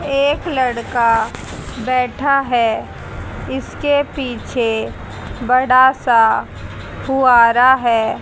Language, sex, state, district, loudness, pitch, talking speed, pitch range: Hindi, female, Haryana, Jhajjar, -15 LUFS, 255 Hz, 75 wpm, 235-270 Hz